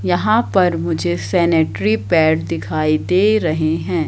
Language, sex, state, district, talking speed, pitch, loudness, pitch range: Hindi, female, Madhya Pradesh, Katni, 130 wpm, 165 Hz, -16 LUFS, 155-180 Hz